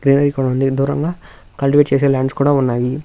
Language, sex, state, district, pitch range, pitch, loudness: Telugu, male, Andhra Pradesh, Visakhapatnam, 135-145 Hz, 140 Hz, -16 LUFS